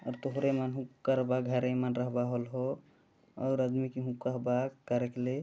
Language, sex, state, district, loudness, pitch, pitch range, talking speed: Chhattisgarhi, male, Chhattisgarh, Jashpur, -33 LUFS, 125 Hz, 125-130 Hz, 120 wpm